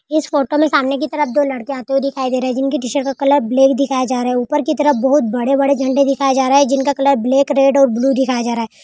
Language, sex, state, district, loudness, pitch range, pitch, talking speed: Hindi, female, Uttar Pradesh, Budaun, -15 LUFS, 260-285 Hz, 275 Hz, 290 wpm